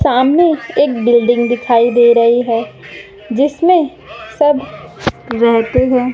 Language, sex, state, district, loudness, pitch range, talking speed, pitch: Hindi, female, Madhya Pradesh, Umaria, -13 LUFS, 235-285 Hz, 105 wpm, 240 Hz